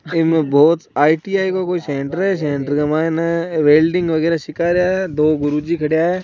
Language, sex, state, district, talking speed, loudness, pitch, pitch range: Hindi, male, Rajasthan, Nagaur, 185 wpm, -17 LUFS, 160 Hz, 150-175 Hz